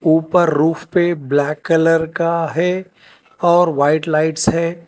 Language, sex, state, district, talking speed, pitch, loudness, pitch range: Hindi, male, Telangana, Hyderabad, 135 wpm, 165 Hz, -16 LUFS, 160-175 Hz